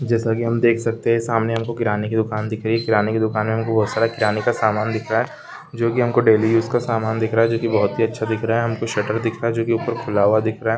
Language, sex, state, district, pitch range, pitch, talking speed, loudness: Hindi, male, Chhattisgarh, Rajnandgaon, 110-115 Hz, 115 Hz, 335 wpm, -20 LUFS